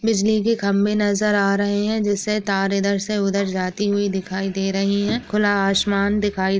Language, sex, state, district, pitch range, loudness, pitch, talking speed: Hindi, female, Uttar Pradesh, Etah, 195-210 Hz, -20 LUFS, 200 Hz, 210 wpm